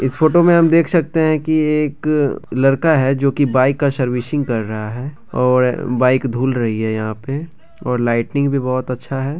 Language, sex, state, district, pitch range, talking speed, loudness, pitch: Hindi, male, Bihar, Begusarai, 125-155 Hz, 205 wpm, -17 LUFS, 135 Hz